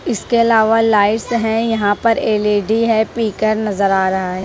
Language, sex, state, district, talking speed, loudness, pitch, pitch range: Hindi, female, Punjab, Kapurthala, 175 wpm, -15 LUFS, 220 Hz, 205-225 Hz